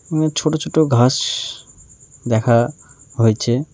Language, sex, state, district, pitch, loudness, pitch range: Bengali, male, West Bengal, Alipurduar, 135 Hz, -17 LUFS, 120-155 Hz